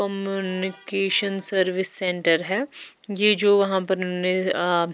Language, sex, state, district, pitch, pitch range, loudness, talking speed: Hindi, female, Bihar, West Champaran, 190 Hz, 185-200 Hz, -18 LUFS, 145 wpm